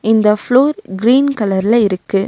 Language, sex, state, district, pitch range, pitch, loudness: Tamil, female, Tamil Nadu, Nilgiris, 200-255 Hz, 220 Hz, -13 LUFS